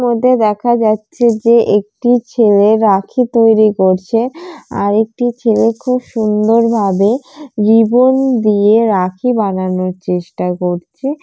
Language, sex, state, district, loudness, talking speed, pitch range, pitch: Bengali, female, West Bengal, Jalpaiguri, -13 LUFS, 110 wpm, 205-245 Hz, 225 Hz